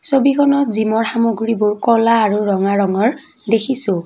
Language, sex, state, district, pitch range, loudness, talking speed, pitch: Assamese, female, Assam, Kamrup Metropolitan, 210-265 Hz, -15 LUFS, 120 wpm, 225 Hz